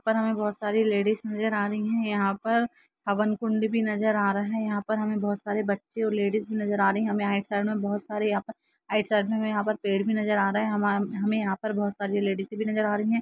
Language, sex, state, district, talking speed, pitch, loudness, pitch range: Hindi, female, Jharkhand, Sahebganj, 270 wpm, 210 Hz, -27 LUFS, 205-220 Hz